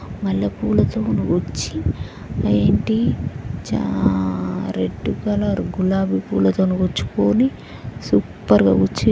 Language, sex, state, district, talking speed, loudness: Telugu, female, Andhra Pradesh, Srikakulam, 70 wpm, -20 LUFS